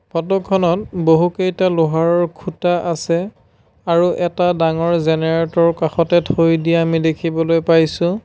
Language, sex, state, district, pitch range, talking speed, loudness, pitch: Assamese, male, Assam, Sonitpur, 165-175 Hz, 110 wpm, -16 LUFS, 170 Hz